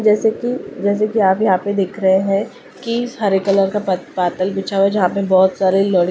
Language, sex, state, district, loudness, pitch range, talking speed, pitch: Hindi, female, Delhi, New Delhi, -17 LUFS, 190-210 Hz, 225 wpm, 195 Hz